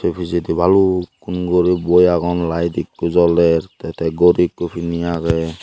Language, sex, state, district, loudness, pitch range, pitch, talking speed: Chakma, male, Tripura, Unakoti, -17 LUFS, 85-90 Hz, 85 Hz, 150 wpm